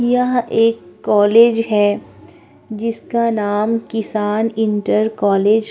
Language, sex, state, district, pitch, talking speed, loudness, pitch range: Hindi, female, Uttar Pradesh, Budaun, 220 Hz, 105 wpm, -16 LUFS, 210-230 Hz